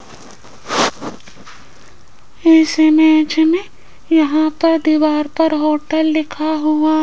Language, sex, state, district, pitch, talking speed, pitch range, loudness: Hindi, female, Rajasthan, Jaipur, 315 Hz, 85 wpm, 310-320 Hz, -14 LUFS